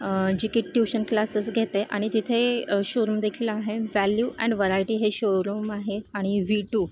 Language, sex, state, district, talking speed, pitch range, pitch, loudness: Marathi, female, Maharashtra, Solapur, 175 wpm, 200-225 Hz, 215 Hz, -25 LUFS